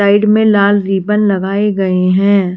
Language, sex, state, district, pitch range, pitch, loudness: Hindi, female, Maharashtra, Washim, 190-210 Hz, 200 Hz, -12 LUFS